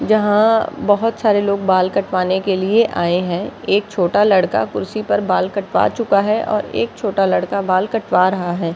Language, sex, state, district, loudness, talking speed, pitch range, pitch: Hindi, female, Bihar, Jahanabad, -17 LUFS, 185 wpm, 185-210 Hz, 200 Hz